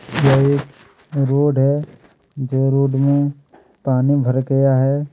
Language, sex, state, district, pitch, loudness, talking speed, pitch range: Hindi, male, Chhattisgarh, Kabirdham, 140 Hz, -17 LUFS, 130 wpm, 135-140 Hz